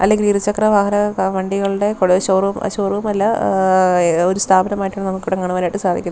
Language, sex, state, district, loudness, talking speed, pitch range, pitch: Malayalam, female, Kerala, Thiruvananthapuram, -16 LUFS, 155 wpm, 190-205 Hz, 195 Hz